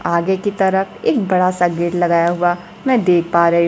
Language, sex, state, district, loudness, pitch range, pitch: Hindi, female, Bihar, Kaimur, -16 LUFS, 170-190 Hz, 175 Hz